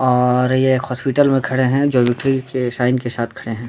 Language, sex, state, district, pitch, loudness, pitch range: Hindi, male, Bihar, Darbhanga, 130 Hz, -17 LUFS, 125-130 Hz